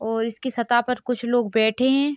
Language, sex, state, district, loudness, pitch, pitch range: Hindi, female, Jharkhand, Sahebganj, -22 LUFS, 240 Hz, 225-250 Hz